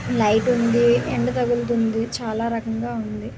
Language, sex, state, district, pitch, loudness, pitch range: Telugu, female, Andhra Pradesh, Visakhapatnam, 225 Hz, -21 LUFS, 220-235 Hz